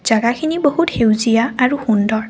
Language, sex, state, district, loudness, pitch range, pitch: Assamese, female, Assam, Kamrup Metropolitan, -16 LUFS, 220-285 Hz, 235 Hz